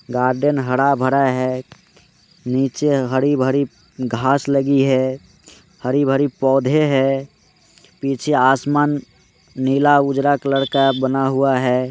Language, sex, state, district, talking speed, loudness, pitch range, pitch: Hindi, male, Rajasthan, Nagaur, 115 wpm, -18 LUFS, 130-140 Hz, 135 Hz